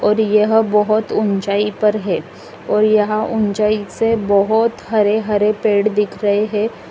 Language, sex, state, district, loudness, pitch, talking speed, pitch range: Hindi, female, Uttar Pradesh, Lalitpur, -16 LUFS, 210 Hz, 140 wpm, 210-215 Hz